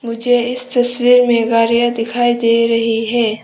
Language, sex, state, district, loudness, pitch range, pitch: Hindi, female, Arunachal Pradesh, Papum Pare, -14 LUFS, 230-245 Hz, 235 Hz